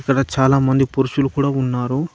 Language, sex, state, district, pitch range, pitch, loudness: Telugu, male, Telangana, Adilabad, 130-140 Hz, 135 Hz, -18 LUFS